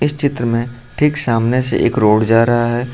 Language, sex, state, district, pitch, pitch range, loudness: Hindi, male, Uttar Pradesh, Lucknow, 120 Hz, 115-130 Hz, -15 LUFS